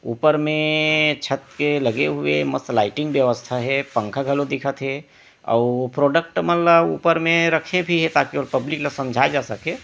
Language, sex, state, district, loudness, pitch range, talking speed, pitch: Chhattisgarhi, male, Chhattisgarh, Rajnandgaon, -20 LUFS, 125-155 Hz, 185 wpm, 145 Hz